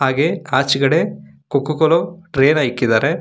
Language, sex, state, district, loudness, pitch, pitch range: Kannada, male, Karnataka, Bangalore, -17 LUFS, 140 Hz, 125-160 Hz